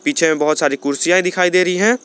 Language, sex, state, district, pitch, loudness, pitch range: Hindi, male, Jharkhand, Garhwa, 180 Hz, -15 LUFS, 150-185 Hz